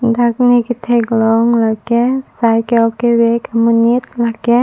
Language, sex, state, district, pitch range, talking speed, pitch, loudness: Karbi, female, Assam, Karbi Anglong, 230-240 Hz, 140 wpm, 235 Hz, -13 LUFS